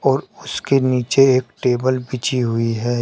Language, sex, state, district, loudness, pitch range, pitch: Hindi, male, Uttar Pradesh, Shamli, -18 LUFS, 120-135 Hz, 125 Hz